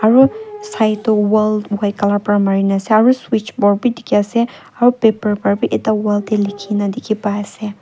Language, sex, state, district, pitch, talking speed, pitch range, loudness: Nagamese, female, Nagaland, Kohima, 215 Hz, 205 wpm, 205-225 Hz, -16 LUFS